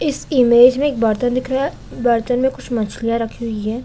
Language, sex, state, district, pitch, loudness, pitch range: Hindi, female, Chhattisgarh, Korba, 245 Hz, -17 LUFS, 230-260 Hz